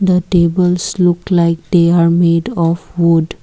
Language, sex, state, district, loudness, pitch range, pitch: English, female, Assam, Kamrup Metropolitan, -13 LUFS, 170-180 Hz, 170 Hz